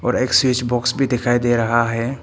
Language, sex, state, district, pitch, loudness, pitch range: Hindi, male, Arunachal Pradesh, Papum Pare, 120 Hz, -18 LUFS, 120-125 Hz